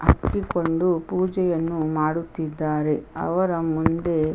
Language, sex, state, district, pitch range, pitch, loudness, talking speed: Kannada, female, Karnataka, Chamarajanagar, 155-175 Hz, 165 Hz, -24 LUFS, 85 wpm